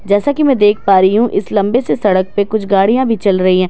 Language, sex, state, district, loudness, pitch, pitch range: Hindi, female, Bihar, Katihar, -12 LUFS, 205 Hz, 195-225 Hz